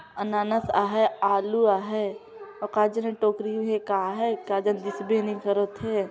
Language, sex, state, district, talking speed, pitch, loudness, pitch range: Chhattisgarhi, female, Chhattisgarh, Jashpur, 175 wpm, 210 Hz, -26 LUFS, 205-220 Hz